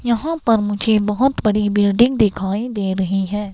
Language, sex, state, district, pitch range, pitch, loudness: Hindi, female, Himachal Pradesh, Shimla, 200-230 Hz, 210 Hz, -18 LUFS